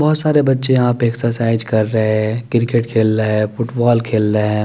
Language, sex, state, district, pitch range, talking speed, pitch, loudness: Hindi, male, Chandigarh, Chandigarh, 110-120 Hz, 220 wpm, 115 Hz, -16 LUFS